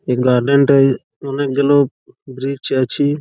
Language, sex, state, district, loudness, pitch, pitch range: Bengali, male, West Bengal, Malda, -16 LUFS, 135 Hz, 130-140 Hz